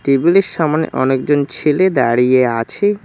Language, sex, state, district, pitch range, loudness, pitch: Bengali, male, West Bengal, Cooch Behar, 130-175 Hz, -14 LUFS, 150 Hz